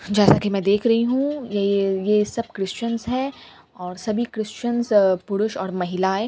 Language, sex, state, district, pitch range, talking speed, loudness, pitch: Hindi, female, Bihar, Katihar, 195-230 Hz, 180 wpm, -21 LUFS, 210 Hz